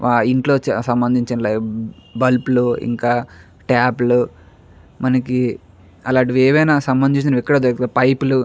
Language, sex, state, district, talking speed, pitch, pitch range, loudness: Telugu, male, Andhra Pradesh, Chittoor, 90 wpm, 125 Hz, 120-130 Hz, -17 LUFS